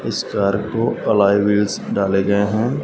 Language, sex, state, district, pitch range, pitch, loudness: Hindi, male, Punjab, Fazilka, 100-110 Hz, 100 Hz, -18 LUFS